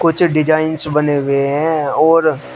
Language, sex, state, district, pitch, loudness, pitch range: Hindi, male, Uttar Pradesh, Shamli, 155 Hz, -14 LUFS, 145-160 Hz